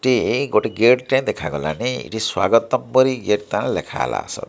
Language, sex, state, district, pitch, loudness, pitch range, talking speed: Odia, male, Odisha, Malkangiri, 120 Hz, -19 LUFS, 105-130 Hz, 215 wpm